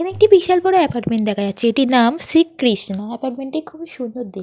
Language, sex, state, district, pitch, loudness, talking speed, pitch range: Bengali, female, West Bengal, Jhargram, 260 Hz, -17 LUFS, 215 wpm, 230-330 Hz